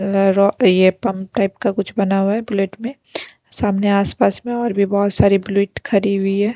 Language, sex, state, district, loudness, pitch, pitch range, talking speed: Hindi, female, Punjab, Pathankot, -17 LUFS, 200 Hz, 195-205 Hz, 190 wpm